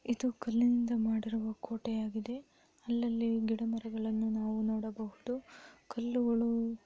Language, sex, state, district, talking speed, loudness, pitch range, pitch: Kannada, female, Karnataka, Raichur, 80 wpm, -34 LUFS, 220-240 Hz, 230 Hz